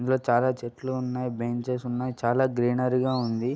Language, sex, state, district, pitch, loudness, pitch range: Telugu, male, Andhra Pradesh, Srikakulam, 125 Hz, -27 LUFS, 120-130 Hz